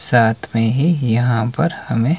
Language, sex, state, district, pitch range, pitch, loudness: Hindi, male, Himachal Pradesh, Shimla, 115-155 Hz, 120 Hz, -17 LUFS